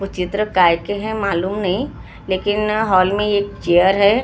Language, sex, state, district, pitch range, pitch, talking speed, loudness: Hindi, female, Maharashtra, Gondia, 185-210 Hz, 200 Hz, 200 wpm, -17 LUFS